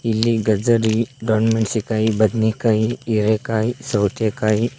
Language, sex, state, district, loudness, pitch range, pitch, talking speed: Kannada, male, Karnataka, Koppal, -19 LUFS, 110-115 Hz, 110 Hz, 90 wpm